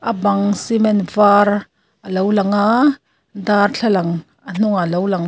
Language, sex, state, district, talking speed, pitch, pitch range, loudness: Mizo, female, Mizoram, Aizawl, 160 wpm, 205 Hz, 195-215 Hz, -16 LUFS